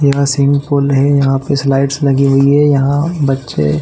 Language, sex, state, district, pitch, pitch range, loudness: Hindi, male, Chhattisgarh, Bilaspur, 140 Hz, 135-140 Hz, -12 LUFS